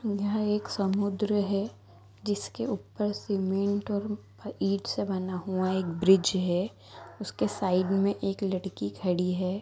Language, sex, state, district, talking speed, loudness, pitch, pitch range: Hindi, female, Chhattisgarh, Bastar, 135 wpm, -29 LUFS, 195 Hz, 180-205 Hz